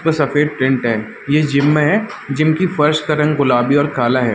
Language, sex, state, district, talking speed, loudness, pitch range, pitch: Hindi, male, Chhattisgarh, Rajnandgaon, 220 wpm, -15 LUFS, 130-155 Hz, 150 Hz